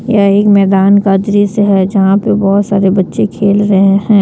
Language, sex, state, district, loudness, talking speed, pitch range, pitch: Hindi, female, Jharkhand, Deoghar, -10 LUFS, 200 wpm, 195-205 Hz, 200 Hz